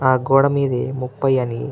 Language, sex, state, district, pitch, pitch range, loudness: Telugu, male, Andhra Pradesh, Anantapur, 130 Hz, 125-135 Hz, -18 LUFS